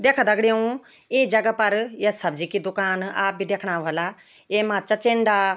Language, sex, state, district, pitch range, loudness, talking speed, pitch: Garhwali, female, Uttarakhand, Tehri Garhwal, 195-225 Hz, -22 LUFS, 170 wpm, 205 Hz